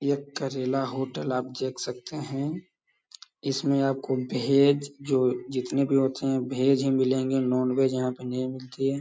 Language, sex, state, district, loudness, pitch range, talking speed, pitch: Hindi, male, Uttar Pradesh, Hamirpur, -27 LUFS, 130-140 Hz, 160 wpm, 135 Hz